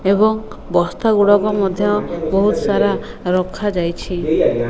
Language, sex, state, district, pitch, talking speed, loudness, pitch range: Odia, female, Odisha, Malkangiri, 205 Hz, 100 wpm, -17 LUFS, 185-210 Hz